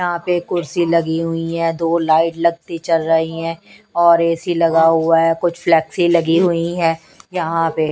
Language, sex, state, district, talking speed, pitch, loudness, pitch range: Hindi, female, Odisha, Nuapada, 190 wpm, 165 Hz, -16 LUFS, 165-170 Hz